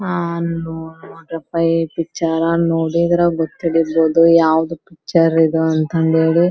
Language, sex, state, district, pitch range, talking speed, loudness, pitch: Kannada, female, Karnataka, Belgaum, 160-170 Hz, 130 wpm, -16 LUFS, 165 Hz